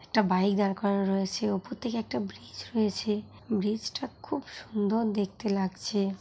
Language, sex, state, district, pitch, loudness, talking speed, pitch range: Bengali, female, West Bengal, Kolkata, 205 Hz, -30 LUFS, 145 wpm, 195-220 Hz